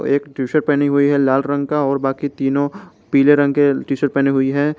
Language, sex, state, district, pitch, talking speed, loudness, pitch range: Hindi, male, Jharkhand, Garhwa, 140 Hz, 215 wpm, -17 LUFS, 135-145 Hz